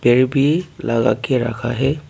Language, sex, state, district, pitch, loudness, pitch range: Hindi, male, Arunachal Pradesh, Papum Pare, 130 Hz, -18 LUFS, 120-145 Hz